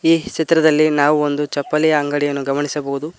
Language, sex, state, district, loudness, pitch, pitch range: Kannada, male, Karnataka, Koppal, -17 LUFS, 150 Hz, 145-155 Hz